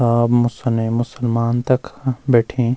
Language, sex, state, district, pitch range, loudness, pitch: Garhwali, male, Uttarakhand, Uttarkashi, 120-125 Hz, -18 LUFS, 120 Hz